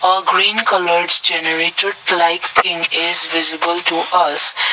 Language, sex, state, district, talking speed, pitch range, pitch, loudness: English, male, Assam, Kamrup Metropolitan, 125 wpm, 170-185 Hz, 170 Hz, -14 LUFS